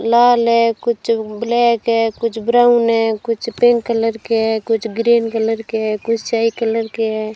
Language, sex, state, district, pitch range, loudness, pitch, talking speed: Hindi, female, Rajasthan, Bikaner, 225-235 Hz, -16 LUFS, 230 Hz, 190 wpm